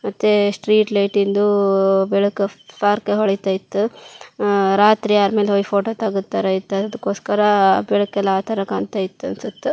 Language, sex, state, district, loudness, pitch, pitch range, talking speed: Kannada, female, Karnataka, Shimoga, -18 LUFS, 200 Hz, 195-210 Hz, 110 wpm